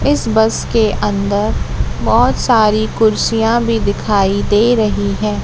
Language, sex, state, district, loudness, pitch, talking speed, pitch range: Hindi, female, Madhya Pradesh, Katni, -14 LUFS, 215 Hz, 135 wpm, 205-225 Hz